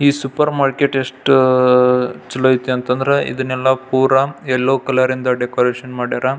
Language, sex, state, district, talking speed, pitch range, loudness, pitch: Kannada, male, Karnataka, Belgaum, 140 wpm, 125-135 Hz, -16 LUFS, 130 Hz